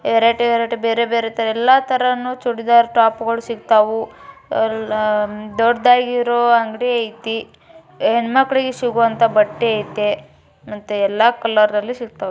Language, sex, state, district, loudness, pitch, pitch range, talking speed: Kannada, male, Karnataka, Bijapur, -17 LUFS, 230 Hz, 220-245 Hz, 95 wpm